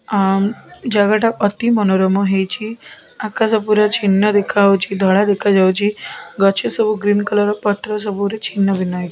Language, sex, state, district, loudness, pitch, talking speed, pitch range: Odia, female, Odisha, Khordha, -16 LUFS, 205 Hz, 140 wpm, 195-215 Hz